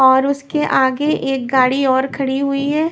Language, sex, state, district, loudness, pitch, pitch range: Hindi, female, Maharashtra, Washim, -16 LUFS, 270 Hz, 265-280 Hz